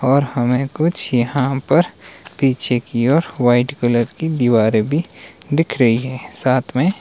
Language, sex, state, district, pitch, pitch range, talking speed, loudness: Hindi, male, Himachal Pradesh, Shimla, 130 Hz, 120-145 Hz, 155 wpm, -17 LUFS